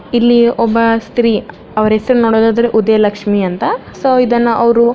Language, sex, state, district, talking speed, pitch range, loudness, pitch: Kannada, female, Karnataka, Bellary, 145 wpm, 215-235 Hz, -12 LUFS, 230 Hz